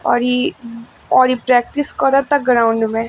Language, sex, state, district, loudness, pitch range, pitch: Hindi, female, Bihar, East Champaran, -15 LUFS, 230-260 Hz, 245 Hz